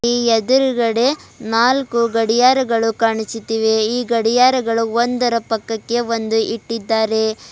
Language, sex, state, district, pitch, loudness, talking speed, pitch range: Kannada, female, Karnataka, Bidar, 230 Hz, -17 LUFS, 90 wpm, 225-240 Hz